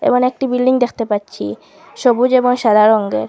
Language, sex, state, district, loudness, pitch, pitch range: Bengali, female, Assam, Hailakandi, -15 LUFS, 240 Hz, 210-250 Hz